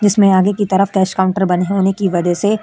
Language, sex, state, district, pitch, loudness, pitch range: Hindi, female, Uttar Pradesh, Etah, 195 Hz, -14 LUFS, 190-200 Hz